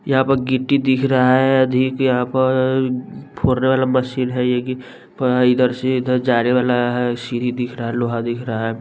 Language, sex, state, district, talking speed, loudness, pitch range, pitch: Hindi, male, Bihar, West Champaran, 200 wpm, -18 LUFS, 125-130 Hz, 125 Hz